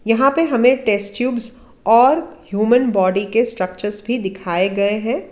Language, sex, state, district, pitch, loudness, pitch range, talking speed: Hindi, female, Karnataka, Bangalore, 225 Hz, -16 LUFS, 200-245 Hz, 160 wpm